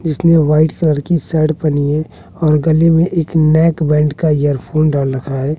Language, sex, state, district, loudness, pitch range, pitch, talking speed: Hindi, male, Bihar, West Champaran, -14 LUFS, 150-160 Hz, 155 Hz, 195 wpm